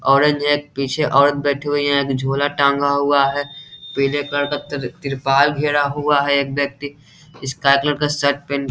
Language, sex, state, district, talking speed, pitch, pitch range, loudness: Hindi, male, Bihar, Saharsa, 195 wpm, 145 Hz, 140-145 Hz, -18 LUFS